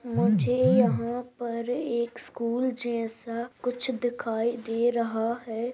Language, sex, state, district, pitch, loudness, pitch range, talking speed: Hindi, female, Goa, North and South Goa, 235 Hz, -28 LUFS, 230-245 Hz, 115 wpm